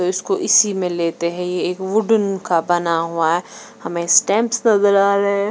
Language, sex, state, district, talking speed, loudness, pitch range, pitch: Hindi, female, Punjab, Fazilka, 195 wpm, -17 LUFS, 170-200 Hz, 185 Hz